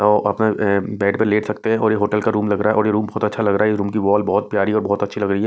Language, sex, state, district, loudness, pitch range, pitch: Hindi, male, Punjab, Kapurthala, -18 LUFS, 100-110 Hz, 105 Hz